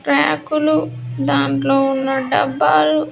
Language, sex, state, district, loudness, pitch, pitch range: Telugu, female, Andhra Pradesh, Sri Satya Sai, -17 LUFS, 155 Hz, 140-155 Hz